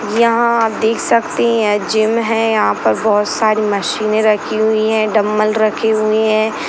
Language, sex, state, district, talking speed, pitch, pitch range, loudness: Hindi, female, Maharashtra, Dhule, 170 wpm, 215 Hz, 215-225 Hz, -14 LUFS